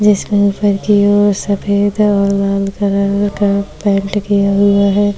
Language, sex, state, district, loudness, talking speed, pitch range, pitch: Hindi, female, Maharashtra, Chandrapur, -13 LUFS, 115 wpm, 200-205 Hz, 200 Hz